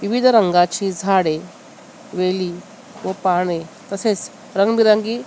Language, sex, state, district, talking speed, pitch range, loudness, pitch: Marathi, female, Maharashtra, Mumbai Suburban, 105 wpm, 180-215 Hz, -18 LUFS, 195 Hz